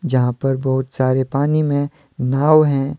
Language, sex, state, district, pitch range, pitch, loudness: Hindi, male, Jharkhand, Deoghar, 130-145 Hz, 135 Hz, -18 LUFS